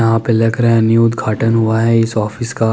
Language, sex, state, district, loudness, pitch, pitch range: Hindi, male, Chandigarh, Chandigarh, -14 LUFS, 115 Hz, 110-115 Hz